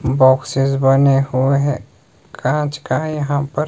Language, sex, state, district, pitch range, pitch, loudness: Hindi, male, Himachal Pradesh, Shimla, 130-145 Hz, 135 Hz, -16 LUFS